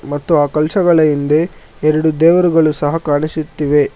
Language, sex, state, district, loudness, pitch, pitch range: Kannada, male, Karnataka, Bangalore, -14 LUFS, 155 Hz, 145-160 Hz